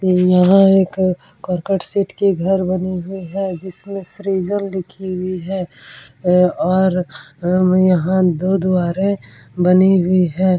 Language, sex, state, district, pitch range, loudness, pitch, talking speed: Hindi, female, Bihar, Vaishali, 180-190 Hz, -17 LUFS, 185 Hz, 130 wpm